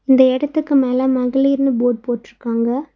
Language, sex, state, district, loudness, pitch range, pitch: Tamil, female, Tamil Nadu, Nilgiris, -17 LUFS, 245-275 Hz, 260 Hz